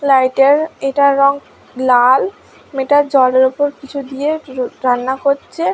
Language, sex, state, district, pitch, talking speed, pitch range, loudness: Bengali, female, West Bengal, Dakshin Dinajpur, 275 Hz, 135 wpm, 260-285 Hz, -14 LUFS